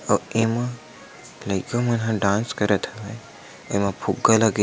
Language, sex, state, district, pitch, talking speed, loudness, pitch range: Chhattisgarhi, male, Chhattisgarh, Sukma, 110 Hz, 155 wpm, -23 LUFS, 105-115 Hz